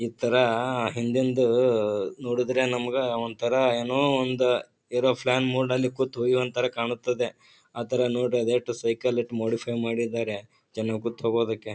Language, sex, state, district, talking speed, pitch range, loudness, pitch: Kannada, male, Karnataka, Bijapur, 105 wpm, 115-125 Hz, -26 LUFS, 120 Hz